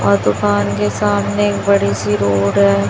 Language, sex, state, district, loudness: Hindi, female, Chhattisgarh, Raipur, -15 LUFS